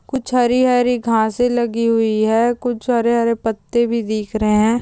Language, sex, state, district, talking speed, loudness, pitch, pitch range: Hindi, female, Andhra Pradesh, Chittoor, 160 wpm, -17 LUFS, 235 Hz, 220-245 Hz